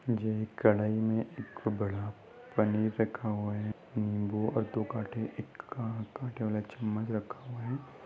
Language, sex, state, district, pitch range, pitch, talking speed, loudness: Hindi, male, Uttar Pradesh, Ghazipur, 105-115 Hz, 110 Hz, 165 wpm, -34 LUFS